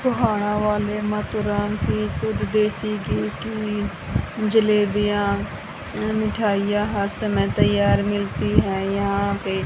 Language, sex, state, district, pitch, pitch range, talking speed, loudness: Hindi, female, Haryana, Rohtak, 205 Hz, 195-210 Hz, 110 wpm, -22 LUFS